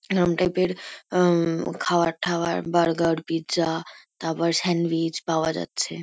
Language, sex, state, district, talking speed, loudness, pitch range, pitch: Bengali, female, West Bengal, Kolkata, 110 wpm, -24 LUFS, 165-175 Hz, 170 Hz